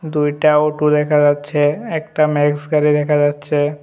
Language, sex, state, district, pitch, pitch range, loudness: Bengali, male, Tripura, West Tripura, 150 Hz, 145-150 Hz, -16 LUFS